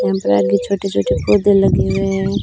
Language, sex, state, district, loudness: Hindi, female, Rajasthan, Bikaner, -15 LUFS